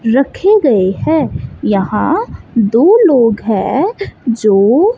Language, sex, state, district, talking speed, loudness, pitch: Hindi, female, Chandigarh, Chandigarh, 95 wpm, -12 LUFS, 235 Hz